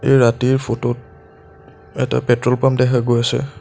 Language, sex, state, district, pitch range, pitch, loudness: Assamese, male, Assam, Sonitpur, 115-130 Hz, 120 Hz, -17 LUFS